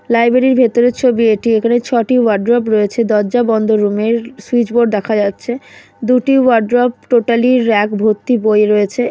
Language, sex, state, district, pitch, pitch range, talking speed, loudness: Bengali, female, West Bengal, Jalpaiguri, 235 Hz, 215-245 Hz, 160 wpm, -13 LUFS